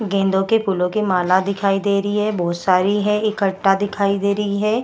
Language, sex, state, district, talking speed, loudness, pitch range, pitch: Hindi, female, Bihar, Gaya, 210 wpm, -18 LUFS, 190-210 Hz, 200 Hz